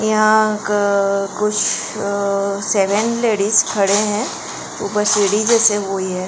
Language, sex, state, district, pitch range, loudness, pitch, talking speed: Hindi, female, Goa, North and South Goa, 200-215 Hz, -16 LUFS, 205 Hz, 105 wpm